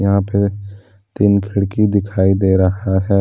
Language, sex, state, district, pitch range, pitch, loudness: Hindi, male, Jharkhand, Deoghar, 95-100 Hz, 100 Hz, -16 LUFS